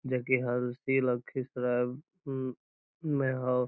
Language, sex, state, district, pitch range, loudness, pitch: Magahi, male, Bihar, Lakhisarai, 125-130 Hz, -32 LUFS, 125 Hz